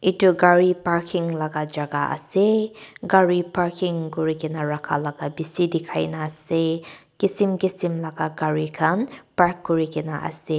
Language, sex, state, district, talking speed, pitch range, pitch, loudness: Nagamese, female, Nagaland, Kohima, 125 wpm, 155-185 Hz, 165 Hz, -22 LUFS